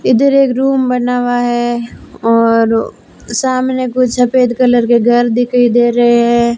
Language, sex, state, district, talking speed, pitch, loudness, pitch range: Hindi, female, Rajasthan, Bikaner, 155 wpm, 245 Hz, -12 LUFS, 235-255 Hz